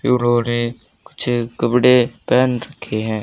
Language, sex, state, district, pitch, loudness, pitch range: Hindi, male, Haryana, Jhajjar, 120 Hz, -18 LUFS, 120-125 Hz